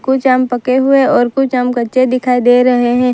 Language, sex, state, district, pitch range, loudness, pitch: Hindi, female, Gujarat, Valsad, 245-260 Hz, -12 LUFS, 255 Hz